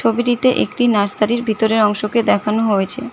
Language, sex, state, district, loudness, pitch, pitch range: Bengali, female, West Bengal, Cooch Behar, -16 LUFS, 220 Hz, 210-240 Hz